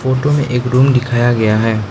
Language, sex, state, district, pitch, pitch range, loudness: Hindi, male, Arunachal Pradesh, Lower Dibang Valley, 125 Hz, 115-130 Hz, -13 LUFS